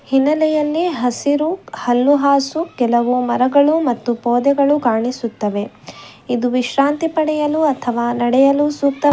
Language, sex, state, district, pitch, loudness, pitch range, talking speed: Kannada, female, Karnataka, Bangalore, 275 Hz, -16 LUFS, 245-295 Hz, 100 wpm